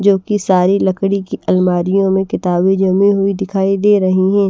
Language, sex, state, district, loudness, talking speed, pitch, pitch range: Hindi, female, Maharashtra, Washim, -14 LUFS, 185 wpm, 195 Hz, 185-195 Hz